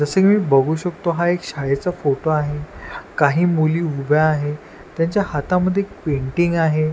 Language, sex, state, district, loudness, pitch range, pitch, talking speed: Marathi, male, Maharashtra, Washim, -19 LUFS, 145-175 Hz, 155 Hz, 165 wpm